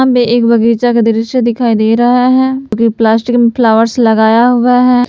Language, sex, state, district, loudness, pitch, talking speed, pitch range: Hindi, female, Jharkhand, Palamu, -10 LUFS, 235 Hz, 155 wpm, 225-245 Hz